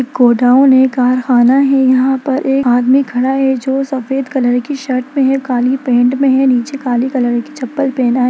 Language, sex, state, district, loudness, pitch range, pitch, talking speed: Hindi, female, Bihar, Jamui, -12 LUFS, 250-270 Hz, 260 Hz, 200 wpm